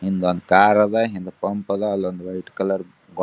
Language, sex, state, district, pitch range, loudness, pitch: Kannada, male, Karnataka, Gulbarga, 90-100 Hz, -20 LUFS, 95 Hz